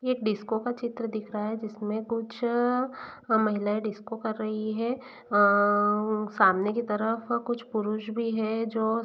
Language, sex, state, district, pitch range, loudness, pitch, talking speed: Hindi, female, Bihar, East Champaran, 210-230 Hz, -28 LUFS, 220 Hz, 160 wpm